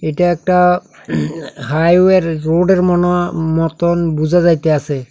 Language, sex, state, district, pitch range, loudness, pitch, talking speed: Bengali, male, Tripura, South Tripura, 155-175 Hz, -14 LUFS, 170 Hz, 105 wpm